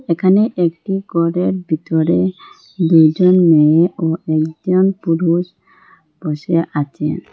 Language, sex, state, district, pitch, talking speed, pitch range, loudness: Bengali, female, Assam, Hailakandi, 165 Hz, 90 wpm, 155-185 Hz, -15 LUFS